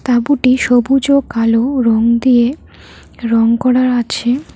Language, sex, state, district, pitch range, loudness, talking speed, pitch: Bengali, female, West Bengal, Cooch Behar, 235-260 Hz, -13 LUFS, 120 wpm, 245 Hz